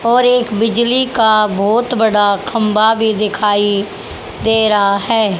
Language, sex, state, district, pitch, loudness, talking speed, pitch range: Hindi, female, Haryana, Charkhi Dadri, 220 Hz, -13 LUFS, 135 wpm, 205-230 Hz